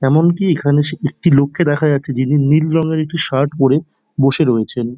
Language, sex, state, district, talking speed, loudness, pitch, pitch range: Bengali, male, West Bengal, Dakshin Dinajpur, 180 wpm, -15 LUFS, 145 Hz, 135-160 Hz